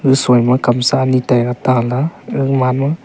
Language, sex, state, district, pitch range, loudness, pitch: Wancho, male, Arunachal Pradesh, Longding, 125-135 Hz, -14 LUFS, 130 Hz